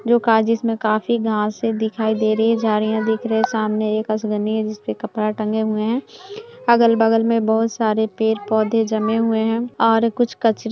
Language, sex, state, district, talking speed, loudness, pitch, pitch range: Hindi, female, Bihar, Kishanganj, 205 wpm, -19 LUFS, 220 Hz, 215-230 Hz